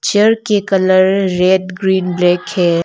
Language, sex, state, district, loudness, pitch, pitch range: Hindi, female, Arunachal Pradesh, Lower Dibang Valley, -13 LUFS, 185 Hz, 180-195 Hz